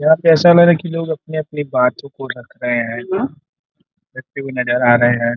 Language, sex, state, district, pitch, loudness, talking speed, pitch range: Hindi, male, Uttar Pradesh, Gorakhpur, 140 Hz, -15 LUFS, 210 wpm, 125-160 Hz